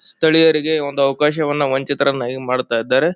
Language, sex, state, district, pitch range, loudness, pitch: Kannada, male, Karnataka, Bijapur, 135-155 Hz, -17 LUFS, 140 Hz